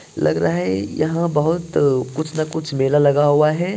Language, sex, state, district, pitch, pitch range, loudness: Hindi, male, Bihar, Purnia, 150 Hz, 130-155 Hz, -18 LUFS